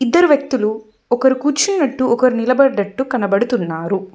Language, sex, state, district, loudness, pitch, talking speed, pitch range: Telugu, female, Telangana, Mahabubabad, -16 LUFS, 250 Hz, 100 wpm, 215-275 Hz